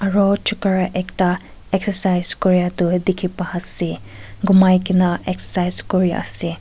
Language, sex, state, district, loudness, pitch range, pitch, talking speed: Nagamese, female, Nagaland, Kohima, -17 LUFS, 180-190 Hz, 185 Hz, 100 wpm